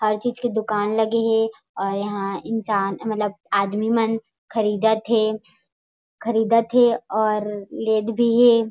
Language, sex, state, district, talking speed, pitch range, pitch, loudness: Chhattisgarhi, female, Chhattisgarh, Raigarh, 140 wpm, 210-230 Hz, 220 Hz, -21 LUFS